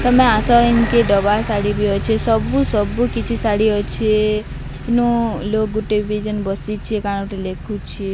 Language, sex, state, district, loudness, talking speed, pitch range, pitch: Odia, female, Odisha, Sambalpur, -18 LUFS, 155 wpm, 205-230 Hz, 215 Hz